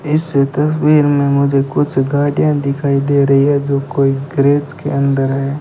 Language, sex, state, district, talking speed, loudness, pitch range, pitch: Hindi, male, Rajasthan, Bikaner, 170 wpm, -14 LUFS, 140-145 Hz, 140 Hz